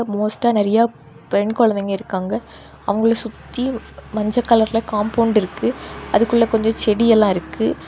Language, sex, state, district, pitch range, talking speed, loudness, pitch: Tamil, female, Tamil Nadu, Kanyakumari, 205-230 Hz, 120 wpm, -18 LUFS, 220 Hz